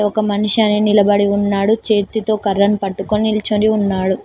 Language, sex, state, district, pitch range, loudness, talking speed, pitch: Telugu, female, Telangana, Mahabubabad, 200-215 Hz, -15 LUFS, 140 wpm, 210 Hz